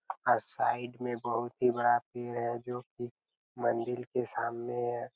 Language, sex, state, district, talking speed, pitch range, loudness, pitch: Hindi, male, Chhattisgarh, Raigarh, 165 wpm, 120-125 Hz, -32 LUFS, 120 Hz